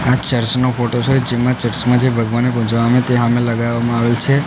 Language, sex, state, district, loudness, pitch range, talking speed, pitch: Gujarati, male, Gujarat, Gandhinagar, -15 LUFS, 120-125 Hz, 200 wpm, 120 Hz